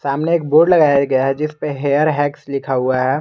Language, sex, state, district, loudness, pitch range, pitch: Hindi, male, Jharkhand, Garhwa, -16 LUFS, 135-150 Hz, 145 Hz